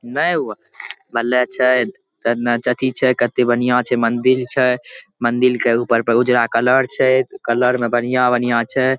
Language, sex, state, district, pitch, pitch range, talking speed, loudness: Maithili, male, Bihar, Saharsa, 125 Hz, 120-125 Hz, 155 wpm, -17 LUFS